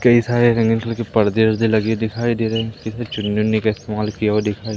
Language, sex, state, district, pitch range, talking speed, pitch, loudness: Hindi, male, Madhya Pradesh, Umaria, 105-115 Hz, 240 wpm, 110 Hz, -19 LUFS